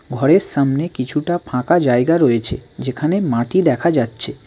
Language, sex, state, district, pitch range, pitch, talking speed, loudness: Bengali, male, West Bengal, Cooch Behar, 125-170 Hz, 140 Hz, 135 wpm, -17 LUFS